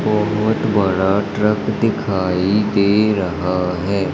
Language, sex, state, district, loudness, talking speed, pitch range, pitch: Hindi, female, Madhya Pradesh, Umaria, -17 LUFS, 100 wpm, 95-105 Hz, 100 Hz